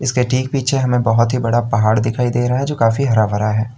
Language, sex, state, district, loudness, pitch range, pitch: Hindi, male, Uttar Pradesh, Lalitpur, -16 LUFS, 115-130 Hz, 120 Hz